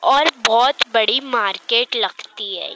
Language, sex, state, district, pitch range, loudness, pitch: Hindi, female, Maharashtra, Mumbai Suburban, 230-360 Hz, -17 LUFS, 260 Hz